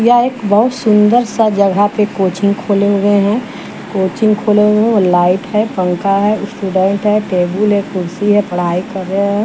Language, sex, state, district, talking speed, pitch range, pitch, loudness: Hindi, female, Bihar, Patna, 175 wpm, 190-215 Hz, 205 Hz, -13 LUFS